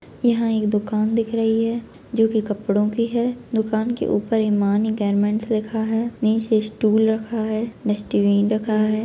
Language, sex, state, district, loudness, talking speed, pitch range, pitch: Kumaoni, female, Uttarakhand, Tehri Garhwal, -21 LUFS, 165 wpm, 215-225 Hz, 220 Hz